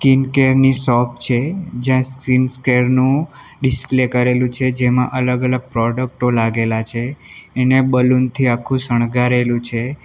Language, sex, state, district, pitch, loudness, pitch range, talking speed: Gujarati, male, Gujarat, Valsad, 125 Hz, -16 LUFS, 125-130 Hz, 145 wpm